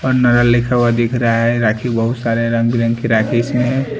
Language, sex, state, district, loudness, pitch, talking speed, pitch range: Hindi, male, Bihar, Patna, -15 LUFS, 120 Hz, 255 wpm, 115-120 Hz